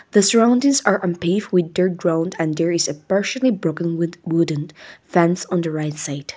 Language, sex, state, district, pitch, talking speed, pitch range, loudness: English, female, Nagaland, Kohima, 170 Hz, 190 wpm, 165-195 Hz, -19 LUFS